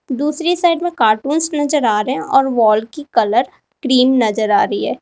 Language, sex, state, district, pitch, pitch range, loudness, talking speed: Hindi, female, Uttar Pradesh, Lalitpur, 270 Hz, 230-305 Hz, -15 LUFS, 205 wpm